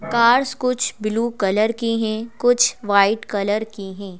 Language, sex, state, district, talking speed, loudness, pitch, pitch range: Hindi, female, Madhya Pradesh, Bhopal, 155 wpm, -19 LUFS, 220 Hz, 205-235 Hz